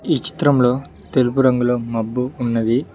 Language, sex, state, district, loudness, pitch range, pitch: Telugu, male, Telangana, Mahabubabad, -18 LUFS, 120-135 Hz, 125 Hz